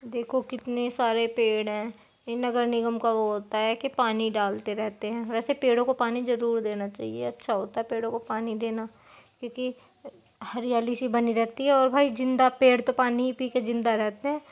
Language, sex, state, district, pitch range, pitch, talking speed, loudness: Hindi, female, Uttar Pradesh, Jyotiba Phule Nagar, 220-255 Hz, 235 Hz, 195 wpm, -27 LUFS